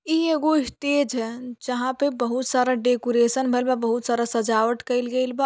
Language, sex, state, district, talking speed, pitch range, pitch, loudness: Bhojpuri, female, Uttar Pradesh, Deoria, 185 wpm, 240-265 Hz, 250 Hz, -23 LUFS